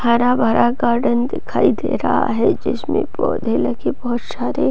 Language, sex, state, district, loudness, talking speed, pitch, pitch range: Hindi, female, Bihar, Gopalganj, -18 LUFS, 155 wpm, 240 Hz, 235-245 Hz